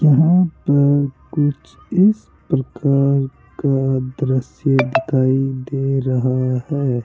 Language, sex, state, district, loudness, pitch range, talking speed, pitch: Hindi, male, Rajasthan, Jaipur, -18 LUFS, 130-145 Hz, 95 wpm, 135 Hz